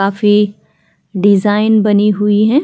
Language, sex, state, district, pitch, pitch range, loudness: Hindi, female, Chhattisgarh, Kabirdham, 210 Hz, 205-210 Hz, -12 LUFS